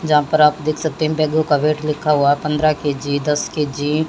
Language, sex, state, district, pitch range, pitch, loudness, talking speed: Hindi, female, Haryana, Jhajjar, 145-155 Hz, 150 Hz, -17 LUFS, 250 wpm